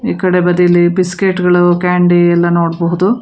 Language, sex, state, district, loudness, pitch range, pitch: Kannada, female, Karnataka, Bangalore, -11 LUFS, 175-180 Hz, 180 Hz